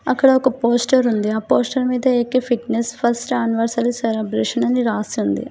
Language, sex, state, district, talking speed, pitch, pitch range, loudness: Telugu, female, Telangana, Hyderabad, 150 wpm, 235 Hz, 225-250 Hz, -18 LUFS